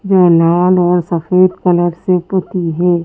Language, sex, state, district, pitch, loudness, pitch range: Hindi, female, Madhya Pradesh, Bhopal, 180 Hz, -12 LUFS, 175-185 Hz